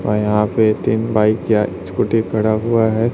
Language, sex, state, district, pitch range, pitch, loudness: Hindi, male, Chhattisgarh, Raipur, 105-110 Hz, 110 Hz, -17 LUFS